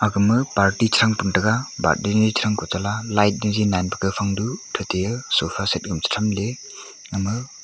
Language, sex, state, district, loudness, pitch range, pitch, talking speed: Wancho, male, Arunachal Pradesh, Longding, -21 LUFS, 100-110 Hz, 105 Hz, 195 wpm